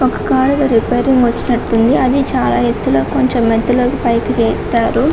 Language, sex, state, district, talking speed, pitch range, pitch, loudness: Telugu, female, Telangana, Karimnagar, 175 wpm, 230-260 Hz, 245 Hz, -13 LUFS